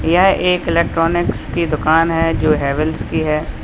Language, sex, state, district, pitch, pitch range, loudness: Hindi, male, Uttar Pradesh, Lalitpur, 165 Hz, 155-170 Hz, -16 LUFS